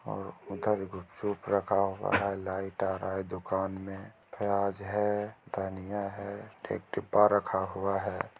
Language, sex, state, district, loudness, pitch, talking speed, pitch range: Hindi, male, Bihar, Gopalganj, -32 LUFS, 100 Hz, 145 wpm, 95-105 Hz